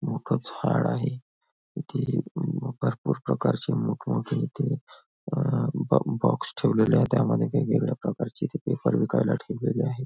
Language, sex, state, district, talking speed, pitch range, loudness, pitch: Marathi, male, Maharashtra, Nagpur, 130 wpm, 125-160 Hz, -27 LUFS, 135 Hz